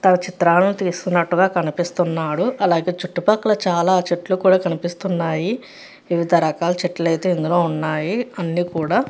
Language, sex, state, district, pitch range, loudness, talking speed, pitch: Telugu, female, Andhra Pradesh, Chittoor, 170-185 Hz, -19 LUFS, 130 wpm, 175 Hz